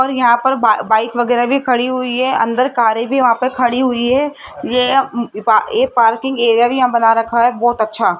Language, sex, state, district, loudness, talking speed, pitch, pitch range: Hindi, female, Rajasthan, Jaipur, -14 LUFS, 225 wpm, 245 Hz, 230-255 Hz